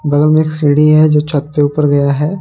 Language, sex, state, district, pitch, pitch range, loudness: Hindi, male, Jharkhand, Palamu, 150 Hz, 145-155 Hz, -11 LUFS